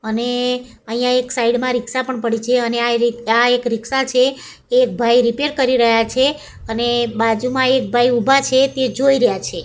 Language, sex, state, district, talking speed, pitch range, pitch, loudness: Gujarati, female, Gujarat, Gandhinagar, 200 wpm, 235-260 Hz, 245 Hz, -16 LUFS